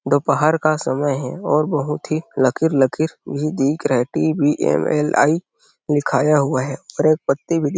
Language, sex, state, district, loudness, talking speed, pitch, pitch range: Hindi, male, Chhattisgarh, Sarguja, -19 LUFS, 185 wpm, 150 Hz, 140-155 Hz